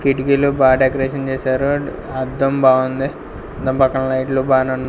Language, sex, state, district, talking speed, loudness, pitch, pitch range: Telugu, male, Andhra Pradesh, Sri Satya Sai, 160 wpm, -17 LUFS, 130 Hz, 130-135 Hz